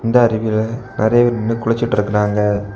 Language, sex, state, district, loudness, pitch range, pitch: Tamil, male, Tamil Nadu, Kanyakumari, -16 LUFS, 105-120 Hz, 110 Hz